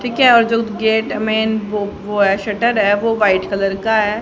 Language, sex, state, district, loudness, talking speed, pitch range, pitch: Hindi, female, Haryana, Charkhi Dadri, -16 LUFS, 240 wpm, 205-220 Hz, 215 Hz